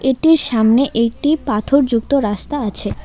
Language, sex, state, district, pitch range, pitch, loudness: Bengali, female, West Bengal, Alipurduar, 225-285 Hz, 265 Hz, -15 LUFS